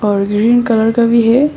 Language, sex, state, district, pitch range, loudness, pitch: Hindi, female, Arunachal Pradesh, Longding, 215-240 Hz, -12 LUFS, 230 Hz